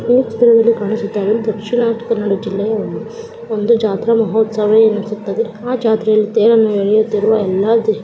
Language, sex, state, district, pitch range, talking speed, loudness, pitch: Kannada, female, Karnataka, Dakshina Kannada, 215-230 Hz, 125 wpm, -15 LUFS, 220 Hz